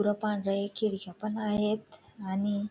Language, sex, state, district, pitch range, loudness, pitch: Marathi, female, Maharashtra, Dhule, 200-215 Hz, -31 LUFS, 205 Hz